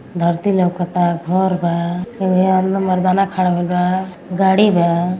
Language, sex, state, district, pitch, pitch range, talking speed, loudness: Hindi, female, Uttar Pradesh, Ghazipur, 185 Hz, 175-190 Hz, 160 wpm, -16 LUFS